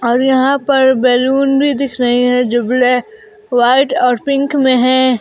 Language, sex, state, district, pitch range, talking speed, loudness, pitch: Hindi, female, Jharkhand, Garhwa, 250-275 Hz, 175 wpm, -12 LUFS, 260 Hz